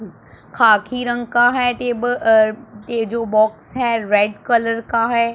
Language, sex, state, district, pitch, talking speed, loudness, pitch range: Hindi, male, Punjab, Pathankot, 230 Hz, 155 wpm, -17 LUFS, 220-240 Hz